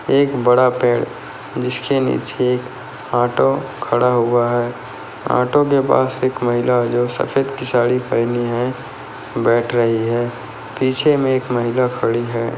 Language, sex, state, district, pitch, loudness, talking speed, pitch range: Hindi, male, Maharashtra, Chandrapur, 125 Hz, -17 LUFS, 150 wpm, 120-130 Hz